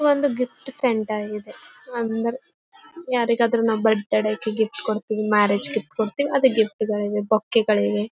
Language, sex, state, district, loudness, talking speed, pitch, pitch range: Kannada, female, Karnataka, Gulbarga, -22 LUFS, 135 wpm, 220 Hz, 215-250 Hz